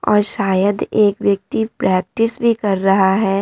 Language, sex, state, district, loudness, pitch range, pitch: Hindi, female, Bihar, Vaishali, -16 LUFS, 195-220 Hz, 200 Hz